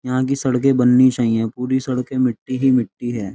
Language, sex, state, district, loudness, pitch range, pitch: Hindi, male, Uttar Pradesh, Jyotiba Phule Nagar, -18 LUFS, 120-130 Hz, 125 Hz